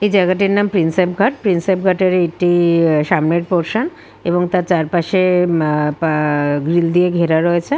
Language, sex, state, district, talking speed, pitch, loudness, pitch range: Bengali, female, West Bengal, Kolkata, 160 wpm, 175 Hz, -15 LUFS, 165-185 Hz